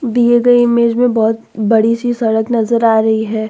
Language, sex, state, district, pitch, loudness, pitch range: Hindi, female, Uttar Pradesh, Muzaffarnagar, 230 Hz, -13 LUFS, 220-240 Hz